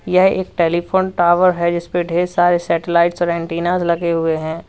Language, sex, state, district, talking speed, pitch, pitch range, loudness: Hindi, male, Uttar Pradesh, Lalitpur, 180 wpm, 170 Hz, 170-180 Hz, -16 LUFS